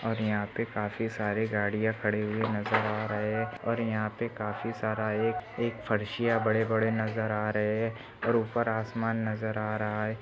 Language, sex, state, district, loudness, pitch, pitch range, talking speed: Hindi, male, Maharashtra, Dhule, -30 LUFS, 110 Hz, 105-115 Hz, 195 wpm